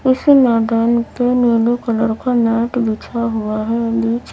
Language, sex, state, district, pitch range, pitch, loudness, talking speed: Hindi, female, Uttar Pradesh, Lalitpur, 230-245 Hz, 235 Hz, -16 LUFS, 150 wpm